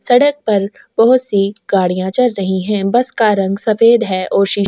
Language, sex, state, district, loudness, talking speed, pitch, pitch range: Hindi, female, Goa, North and South Goa, -14 LUFS, 205 wpm, 210 Hz, 195-235 Hz